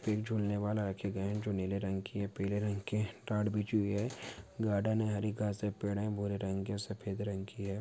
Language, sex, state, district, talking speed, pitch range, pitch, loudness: Hindi, male, Bihar, Saharsa, 245 wpm, 100-105 Hz, 105 Hz, -36 LUFS